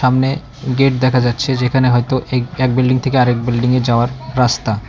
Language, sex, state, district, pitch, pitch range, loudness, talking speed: Bengali, male, West Bengal, Cooch Behar, 125 Hz, 120-130 Hz, -15 LUFS, 170 wpm